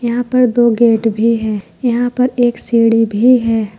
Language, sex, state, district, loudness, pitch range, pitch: Hindi, female, Jharkhand, Ranchi, -13 LUFS, 225-245 Hz, 235 Hz